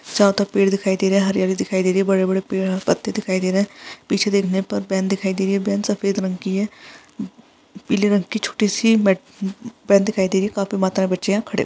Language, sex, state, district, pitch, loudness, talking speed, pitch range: Hindi, female, Bihar, Saharsa, 195 Hz, -20 LUFS, 265 wpm, 190-210 Hz